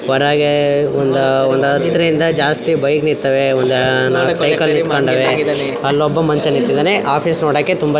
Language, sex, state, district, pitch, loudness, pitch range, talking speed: Kannada, female, Karnataka, Bijapur, 145 Hz, -14 LUFS, 135-150 Hz, 135 wpm